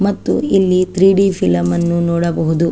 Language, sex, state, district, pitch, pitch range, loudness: Kannada, female, Karnataka, Chamarajanagar, 170 Hz, 170-195 Hz, -14 LUFS